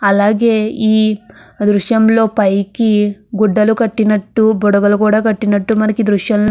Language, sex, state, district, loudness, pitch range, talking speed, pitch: Telugu, female, Andhra Pradesh, Krishna, -13 LUFS, 205-220 Hz, 130 wpm, 215 Hz